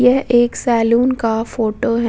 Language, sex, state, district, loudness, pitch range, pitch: Hindi, female, Bihar, Vaishali, -16 LUFS, 230-250 Hz, 235 Hz